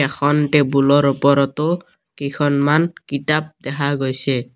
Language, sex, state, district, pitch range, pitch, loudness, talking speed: Assamese, male, Assam, Kamrup Metropolitan, 140-150 Hz, 140 Hz, -18 LUFS, 90 wpm